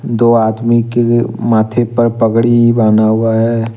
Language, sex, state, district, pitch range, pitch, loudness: Hindi, male, Jharkhand, Deoghar, 110-120 Hz, 115 Hz, -12 LUFS